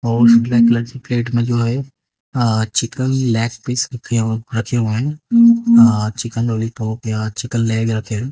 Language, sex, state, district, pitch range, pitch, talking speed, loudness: Hindi, female, Haryana, Jhajjar, 115-125 Hz, 115 Hz, 135 wpm, -16 LUFS